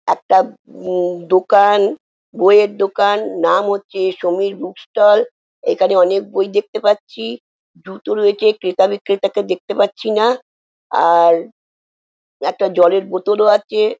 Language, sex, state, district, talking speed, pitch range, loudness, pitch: Bengali, female, West Bengal, Jhargram, 135 wpm, 185-210 Hz, -15 LUFS, 200 Hz